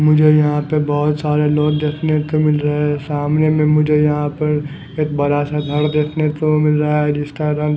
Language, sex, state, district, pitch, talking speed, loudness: Hindi, male, Punjab, Fazilka, 150 Hz, 210 wpm, -16 LUFS